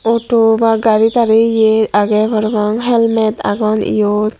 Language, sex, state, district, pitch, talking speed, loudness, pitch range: Chakma, female, Tripura, Dhalai, 220 Hz, 135 wpm, -13 LUFS, 215-225 Hz